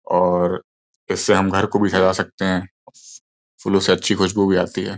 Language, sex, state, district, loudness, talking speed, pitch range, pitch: Hindi, male, Uttar Pradesh, Gorakhpur, -19 LUFS, 195 wpm, 90-100 Hz, 95 Hz